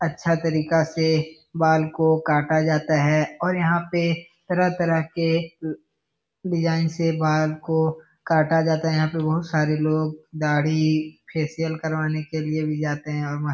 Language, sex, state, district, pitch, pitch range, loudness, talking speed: Hindi, male, Bihar, Darbhanga, 160 Hz, 155-165 Hz, -23 LUFS, 165 wpm